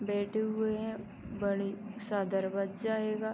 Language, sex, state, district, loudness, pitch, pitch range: Hindi, female, Uttar Pradesh, Gorakhpur, -34 LUFS, 215 Hz, 200-220 Hz